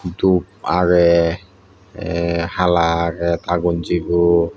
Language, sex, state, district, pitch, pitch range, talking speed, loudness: Chakma, male, Tripura, Dhalai, 85 Hz, 85-90 Hz, 90 wpm, -17 LUFS